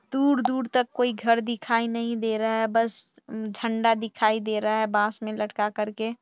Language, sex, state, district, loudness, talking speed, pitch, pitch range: Hindi, female, Bihar, Purnia, -25 LUFS, 195 wpm, 225 Hz, 215-235 Hz